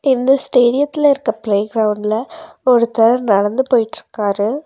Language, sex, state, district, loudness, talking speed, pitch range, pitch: Tamil, female, Tamil Nadu, Nilgiris, -15 LUFS, 105 wpm, 215-270 Hz, 240 Hz